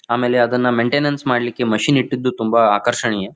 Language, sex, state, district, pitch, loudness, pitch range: Kannada, male, Karnataka, Bijapur, 120 Hz, -17 LUFS, 115-125 Hz